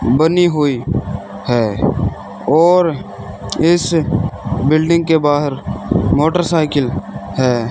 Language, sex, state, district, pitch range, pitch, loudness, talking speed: Hindi, male, Rajasthan, Bikaner, 110-160 Hz, 145 Hz, -15 LUFS, 80 wpm